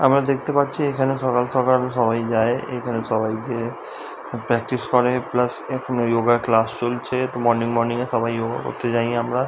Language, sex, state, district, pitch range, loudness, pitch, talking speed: Bengali, male, West Bengal, Dakshin Dinajpur, 115-130 Hz, -21 LUFS, 120 Hz, 170 wpm